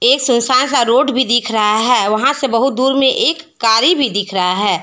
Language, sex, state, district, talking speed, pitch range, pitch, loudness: Hindi, female, Jharkhand, Deoghar, 235 wpm, 225-270 Hz, 250 Hz, -13 LUFS